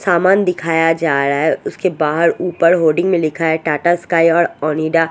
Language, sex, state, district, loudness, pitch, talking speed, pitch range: Hindi, female, Odisha, Sambalpur, -15 LUFS, 165 Hz, 200 wpm, 160-175 Hz